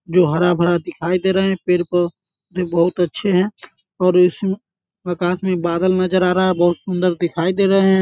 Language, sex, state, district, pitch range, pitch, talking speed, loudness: Hindi, male, Bihar, Bhagalpur, 175-185 Hz, 180 Hz, 200 wpm, -18 LUFS